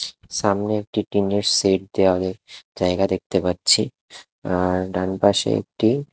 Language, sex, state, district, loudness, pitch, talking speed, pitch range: Bengali, male, Odisha, Khordha, -21 LUFS, 95 Hz, 125 wpm, 90-100 Hz